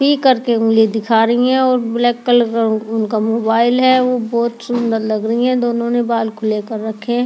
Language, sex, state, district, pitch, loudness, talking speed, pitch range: Hindi, female, Delhi, New Delhi, 235 Hz, -15 LUFS, 225 wpm, 225-240 Hz